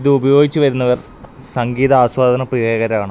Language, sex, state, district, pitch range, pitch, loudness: Malayalam, male, Kerala, Kasaragod, 120-135 Hz, 125 Hz, -15 LUFS